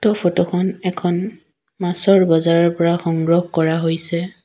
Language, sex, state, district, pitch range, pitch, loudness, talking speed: Assamese, female, Assam, Sonitpur, 165-180 Hz, 175 Hz, -17 LUFS, 120 wpm